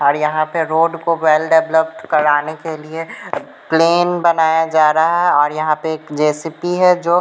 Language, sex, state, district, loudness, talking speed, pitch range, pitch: Hindi, female, Bihar, Patna, -15 LUFS, 190 wpm, 155-165 Hz, 160 Hz